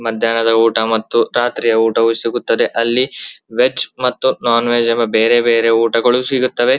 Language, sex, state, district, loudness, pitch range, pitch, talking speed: Kannada, male, Karnataka, Belgaum, -14 LUFS, 115-120 Hz, 115 Hz, 135 wpm